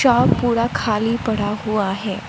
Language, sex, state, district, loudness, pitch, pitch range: Hindi, female, Arunachal Pradesh, Lower Dibang Valley, -19 LUFS, 215 Hz, 205-235 Hz